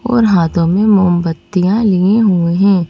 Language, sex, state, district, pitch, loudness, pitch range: Hindi, female, Madhya Pradesh, Bhopal, 190 Hz, -12 LUFS, 175-210 Hz